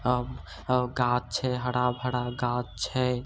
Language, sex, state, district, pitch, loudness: Maithili, male, Bihar, Samastipur, 125 Hz, -28 LUFS